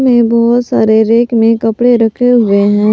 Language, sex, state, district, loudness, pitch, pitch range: Hindi, female, Jharkhand, Palamu, -10 LUFS, 230 Hz, 220-240 Hz